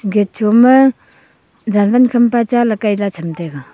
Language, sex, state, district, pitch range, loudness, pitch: Wancho, female, Arunachal Pradesh, Longding, 200-240 Hz, -13 LUFS, 215 Hz